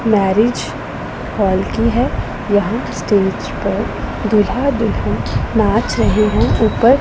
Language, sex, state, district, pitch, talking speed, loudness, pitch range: Hindi, female, Punjab, Pathankot, 215 Hz, 110 wpm, -16 LUFS, 205-235 Hz